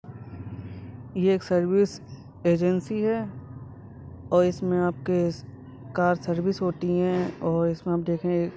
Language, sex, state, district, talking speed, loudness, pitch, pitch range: Hindi, male, Jharkhand, Sahebganj, 105 wpm, -25 LUFS, 170 Hz, 130-180 Hz